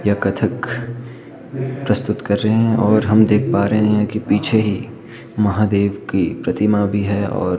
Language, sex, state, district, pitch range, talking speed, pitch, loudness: Hindi, male, Himachal Pradesh, Shimla, 105-115 Hz, 165 wpm, 105 Hz, -17 LUFS